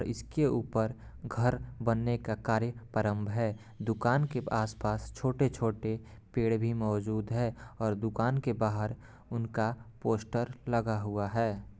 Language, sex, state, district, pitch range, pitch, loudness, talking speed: Hindi, male, Bihar, Gopalganj, 110-120 Hz, 115 Hz, -33 LUFS, 125 wpm